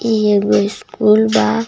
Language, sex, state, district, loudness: Bhojpuri, male, Jharkhand, Palamu, -14 LUFS